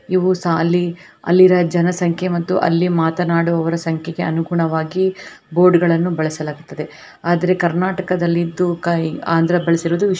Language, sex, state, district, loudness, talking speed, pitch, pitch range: Kannada, female, Karnataka, Bellary, -17 LUFS, 95 wpm, 170 Hz, 165-180 Hz